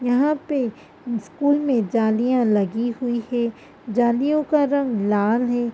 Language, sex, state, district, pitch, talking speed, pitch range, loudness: Hindi, female, Uttar Pradesh, Gorakhpur, 240 Hz, 135 wpm, 230-275 Hz, -21 LUFS